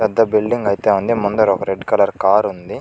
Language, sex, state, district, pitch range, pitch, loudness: Telugu, male, Andhra Pradesh, Chittoor, 100-115 Hz, 110 Hz, -16 LUFS